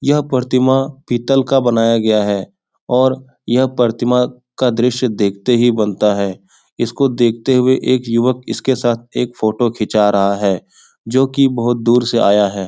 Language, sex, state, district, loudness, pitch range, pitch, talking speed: Hindi, male, Bihar, Jahanabad, -15 LUFS, 110-130 Hz, 120 Hz, 175 wpm